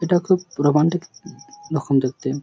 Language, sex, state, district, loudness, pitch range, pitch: Bengali, male, West Bengal, Purulia, -20 LUFS, 145-180 Hz, 160 Hz